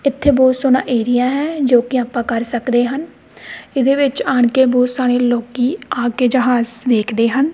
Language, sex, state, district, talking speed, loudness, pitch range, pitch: Punjabi, female, Punjab, Kapurthala, 185 wpm, -16 LUFS, 240-265 Hz, 250 Hz